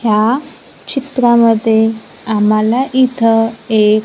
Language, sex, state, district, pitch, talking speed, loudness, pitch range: Marathi, female, Maharashtra, Gondia, 225 Hz, 75 wpm, -13 LUFS, 220-250 Hz